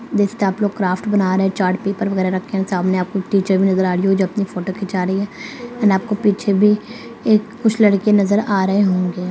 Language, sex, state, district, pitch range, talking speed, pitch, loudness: Hindi, female, Bihar, Madhepura, 190-210 Hz, 250 wpm, 195 Hz, -17 LUFS